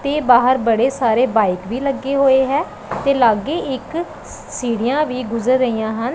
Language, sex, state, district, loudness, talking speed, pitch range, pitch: Punjabi, female, Punjab, Pathankot, -17 LUFS, 165 wpm, 235-275 Hz, 255 Hz